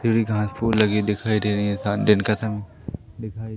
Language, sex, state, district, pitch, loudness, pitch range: Hindi, male, Madhya Pradesh, Umaria, 105 Hz, -22 LUFS, 105-110 Hz